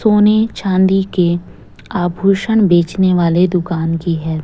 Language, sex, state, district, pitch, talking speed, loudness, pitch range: Hindi, female, Chhattisgarh, Raipur, 180 Hz, 120 wpm, -14 LUFS, 170-195 Hz